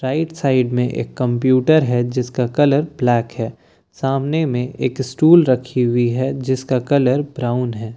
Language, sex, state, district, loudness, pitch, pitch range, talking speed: Hindi, male, Bihar, Katihar, -18 LUFS, 130 Hz, 125-140 Hz, 160 wpm